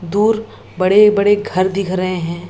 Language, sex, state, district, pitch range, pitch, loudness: Hindi, female, Bihar, Lakhisarai, 185-205 Hz, 190 Hz, -15 LUFS